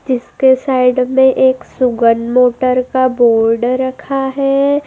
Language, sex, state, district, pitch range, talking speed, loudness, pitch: Hindi, female, Madhya Pradesh, Dhar, 245-265 Hz, 125 wpm, -13 LUFS, 255 Hz